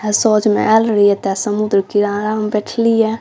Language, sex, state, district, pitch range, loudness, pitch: Maithili, female, Bihar, Saharsa, 205-220 Hz, -15 LUFS, 210 Hz